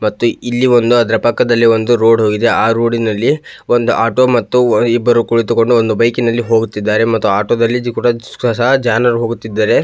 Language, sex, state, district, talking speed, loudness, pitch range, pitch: Kannada, male, Karnataka, Belgaum, 150 wpm, -13 LUFS, 115-120 Hz, 115 Hz